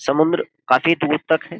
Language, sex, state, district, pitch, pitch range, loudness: Hindi, male, Uttar Pradesh, Jyotiba Phule Nagar, 155 Hz, 150-165 Hz, -19 LUFS